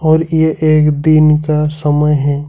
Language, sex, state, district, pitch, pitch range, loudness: Hindi, male, Jharkhand, Ranchi, 155 Hz, 150-155 Hz, -12 LUFS